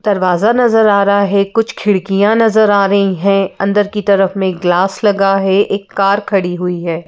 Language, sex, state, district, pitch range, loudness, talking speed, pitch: Hindi, female, Madhya Pradesh, Bhopal, 190-205 Hz, -12 LUFS, 205 wpm, 200 Hz